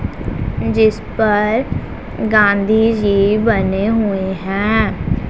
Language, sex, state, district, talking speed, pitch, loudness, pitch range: Hindi, female, Punjab, Pathankot, 80 wpm, 210 Hz, -16 LUFS, 200-220 Hz